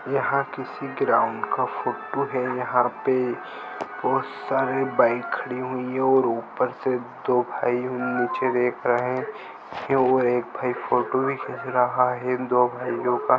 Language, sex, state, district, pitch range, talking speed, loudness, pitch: Hindi, male, Goa, North and South Goa, 125-130 Hz, 145 wpm, -24 LUFS, 125 Hz